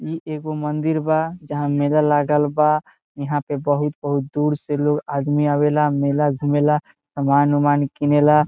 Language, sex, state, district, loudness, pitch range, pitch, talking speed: Bhojpuri, male, Bihar, Saran, -20 LUFS, 145-150 Hz, 150 Hz, 165 wpm